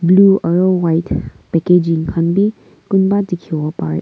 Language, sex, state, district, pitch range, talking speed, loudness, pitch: Nagamese, female, Nagaland, Kohima, 165-195 Hz, 135 wpm, -15 LUFS, 175 Hz